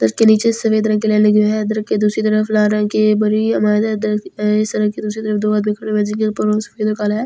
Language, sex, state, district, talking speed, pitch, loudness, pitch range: Hindi, female, Delhi, New Delhi, 255 wpm, 215 Hz, -16 LUFS, 210-215 Hz